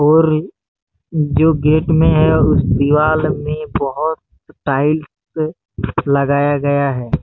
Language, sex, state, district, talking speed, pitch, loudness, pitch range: Hindi, male, Chhattisgarh, Bastar, 110 wpm, 150 Hz, -16 LUFS, 140-155 Hz